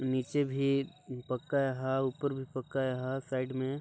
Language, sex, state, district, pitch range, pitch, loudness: Chhattisgarhi, male, Chhattisgarh, Balrampur, 130-140 Hz, 130 Hz, -33 LUFS